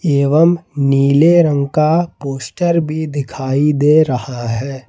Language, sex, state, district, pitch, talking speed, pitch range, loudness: Hindi, male, Jharkhand, Ranchi, 145 Hz, 125 wpm, 135-160 Hz, -14 LUFS